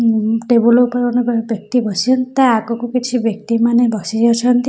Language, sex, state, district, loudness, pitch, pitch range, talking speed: Odia, female, Odisha, Khordha, -15 LUFS, 235 Hz, 225-245 Hz, 165 wpm